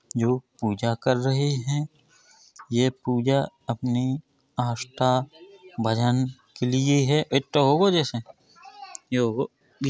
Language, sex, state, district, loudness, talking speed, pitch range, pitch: Hindi, male, Uttar Pradesh, Jalaun, -25 LUFS, 110 wpm, 125-145 Hz, 130 Hz